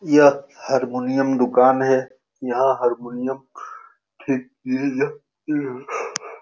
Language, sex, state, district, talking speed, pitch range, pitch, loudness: Hindi, male, Bihar, Saran, 75 wpm, 130-150 Hz, 135 Hz, -21 LUFS